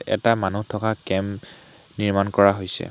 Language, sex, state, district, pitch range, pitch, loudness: Assamese, male, Assam, Hailakandi, 100-110 Hz, 105 Hz, -22 LUFS